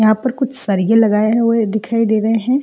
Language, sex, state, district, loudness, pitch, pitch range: Hindi, female, Delhi, New Delhi, -15 LUFS, 225 Hz, 215-235 Hz